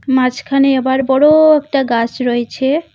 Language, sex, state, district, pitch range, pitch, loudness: Bengali, female, West Bengal, Cooch Behar, 255-285 Hz, 265 Hz, -13 LUFS